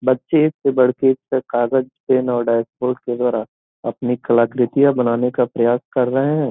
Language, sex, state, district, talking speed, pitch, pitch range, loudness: Hindi, male, Bihar, Gopalganj, 185 wpm, 125 Hz, 120-130 Hz, -18 LUFS